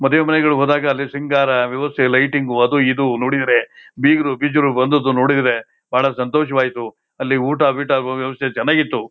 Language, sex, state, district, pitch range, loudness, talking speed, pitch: Kannada, male, Karnataka, Shimoga, 130-145 Hz, -17 LUFS, 130 wpm, 135 Hz